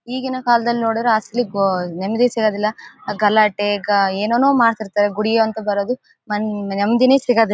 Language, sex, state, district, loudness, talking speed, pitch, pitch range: Kannada, female, Karnataka, Bellary, -18 LUFS, 120 wpm, 215 Hz, 205-235 Hz